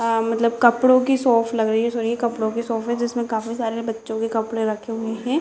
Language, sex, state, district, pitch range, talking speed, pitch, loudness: Hindi, female, Bihar, Jamui, 225-235 Hz, 245 wpm, 230 Hz, -21 LUFS